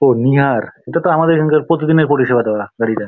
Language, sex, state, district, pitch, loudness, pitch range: Bengali, male, West Bengal, Jalpaiguri, 140 Hz, -14 LUFS, 115-155 Hz